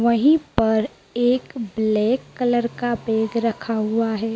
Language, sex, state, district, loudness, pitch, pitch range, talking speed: Hindi, female, Madhya Pradesh, Dhar, -21 LUFS, 230 Hz, 220-240 Hz, 140 wpm